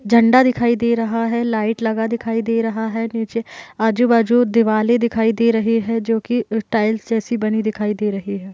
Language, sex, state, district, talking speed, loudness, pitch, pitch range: Hindi, female, Bihar, East Champaran, 195 wpm, -18 LUFS, 225 Hz, 220-235 Hz